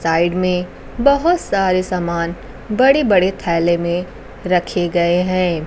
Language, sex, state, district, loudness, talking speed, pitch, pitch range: Hindi, female, Bihar, Kaimur, -17 LUFS, 125 wpm, 180 Hz, 170-195 Hz